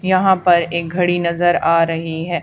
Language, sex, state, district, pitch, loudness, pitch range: Hindi, female, Haryana, Charkhi Dadri, 170 Hz, -16 LUFS, 165-175 Hz